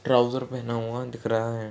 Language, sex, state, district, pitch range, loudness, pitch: Hindi, male, Uttar Pradesh, Hamirpur, 115-125 Hz, -27 LUFS, 120 Hz